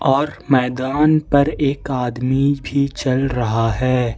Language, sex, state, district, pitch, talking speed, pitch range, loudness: Hindi, male, Jharkhand, Ranchi, 135 Hz, 130 wpm, 125-140 Hz, -18 LUFS